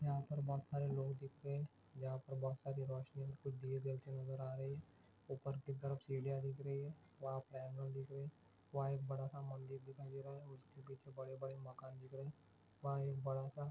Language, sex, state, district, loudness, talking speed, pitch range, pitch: Hindi, male, Jharkhand, Jamtara, -47 LUFS, 195 wpm, 135-140 Hz, 135 Hz